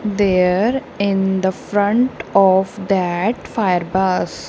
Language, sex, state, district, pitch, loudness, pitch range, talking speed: English, female, Punjab, Kapurthala, 195 Hz, -17 LUFS, 190-205 Hz, 105 wpm